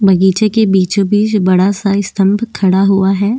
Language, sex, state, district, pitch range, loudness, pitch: Hindi, female, Uttarakhand, Tehri Garhwal, 190-205 Hz, -12 LUFS, 200 Hz